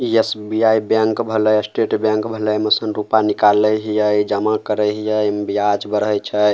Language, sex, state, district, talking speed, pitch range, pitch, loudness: Maithili, male, Bihar, Samastipur, 175 wpm, 105-110 Hz, 105 Hz, -17 LUFS